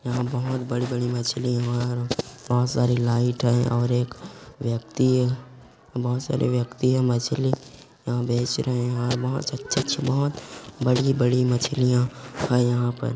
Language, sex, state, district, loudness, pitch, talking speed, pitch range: Hindi, male, Chhattisgarh, Korba, -24 LUFS, 125 Hz, 130 wpm, 120-130 Hz